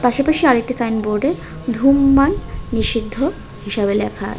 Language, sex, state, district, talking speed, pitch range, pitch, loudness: Bengali, female, Tripura, West Tripura, 110 wpm, 220-275 Hz, 245 Hz, -17 LUFS